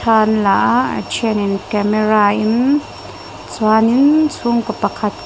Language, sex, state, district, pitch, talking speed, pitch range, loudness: Mizo, female, Mizoram, Aizawl, 220 Hz, 150 wpm, 210-235 Hz, -15 LUFS